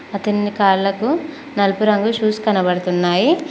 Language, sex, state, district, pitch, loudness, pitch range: Telugu, female, Telangana, Mahabubabad, 210 Hz, -17 LUFS, 195-225 Hz